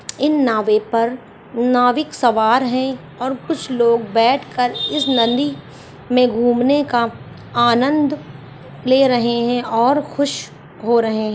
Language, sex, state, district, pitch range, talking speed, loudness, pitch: Hindi, female, Bihar, Saharsa, 230-265 Hz, 125 wpm, -17 LUFS, 245 Hz